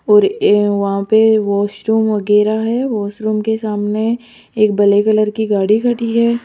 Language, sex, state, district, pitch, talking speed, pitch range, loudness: Hindi, female, Rajasthan, Jaipur, 215 Hz, 160 wpm, 205-230 Hz, -15 LUFS